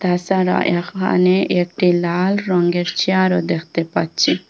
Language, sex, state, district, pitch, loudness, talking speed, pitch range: Bengali, female, Assam, Hailakandi, 180 Hz, -17 LUFS, 105 wpm, 175-185 Hz